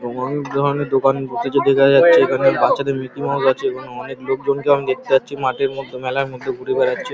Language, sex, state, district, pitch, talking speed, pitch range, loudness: Bengali, male, West Bengal, Paschim Medinipur, 135 Hz, 195 wpm, 130-140 Hz, -18 LUFS